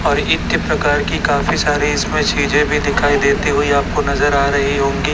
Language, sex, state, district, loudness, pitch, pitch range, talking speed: Hindi, male, Chhattisgarh, Raipur, -15 LUFS, 140 Hz, 140-145 Hz, 200 wpm